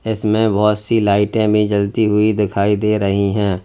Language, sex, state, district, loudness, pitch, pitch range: Hindi, male, Uttar Pradesh, Lalitpur, -16 LUFS, 105 Hz, 100-105 Hz